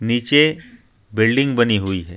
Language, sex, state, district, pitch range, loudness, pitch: Hindi, male, Jharkhand, Ranchi, 105-125 Hz, -17 LUFS, 120 Hz